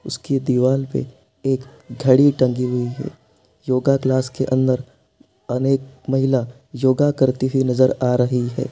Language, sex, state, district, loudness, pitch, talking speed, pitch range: Hindi, male, Bihar, Sitamarhi, -19 LUFS, 130 Hz, 145 wpm, 125-135 Hz